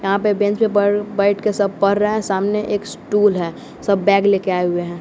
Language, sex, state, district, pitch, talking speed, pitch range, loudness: Hindi, male, Bihar, West Champaran, 200 Hz, 265 wpm, 195-205 Hz, -18 LUFS